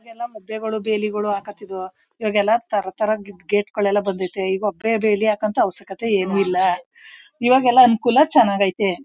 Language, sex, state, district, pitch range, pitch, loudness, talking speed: Kannada, female, Karnataka, Mysore, 195-225 Hz, 210 Hz, -19 LUFS, 125 wpm